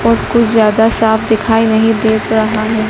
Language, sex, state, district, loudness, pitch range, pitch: Hindi, female, Madhya Pradesh, Dhar, -12 LUFS, 220-225 Hz, 220 Hz